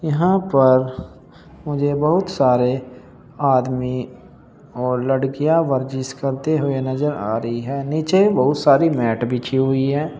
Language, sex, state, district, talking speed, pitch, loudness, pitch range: Hindi, male, Uttar Pradesh, Saharanpur, 130 wpm, 135 Hz, -19 LUFS, 130-150 Hz